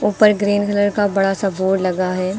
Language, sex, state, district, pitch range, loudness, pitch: Hindi, female, Uttar Pradesh, Lucknow, 190-205 Hz, -17 LUFS, 195 Hz